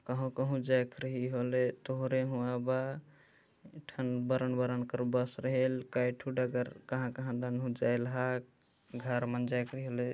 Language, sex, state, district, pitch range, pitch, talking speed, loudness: Chhattisgarhi, male, Chhattisgarh, Jashpur, 125-130 Hz, 125 Hz, 130 wpm, -35 LUFS